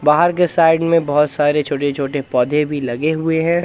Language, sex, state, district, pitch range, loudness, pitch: Hindi, male, Madhya Pradesh, Katni, 145-165 Hz, -16 LUFS, 150 Hz